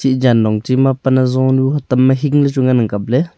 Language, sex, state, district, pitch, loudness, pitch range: Wancho, male, Arunachal Pradesh, Longding, 130 Hz, -14 LUFS, 125-135 Hz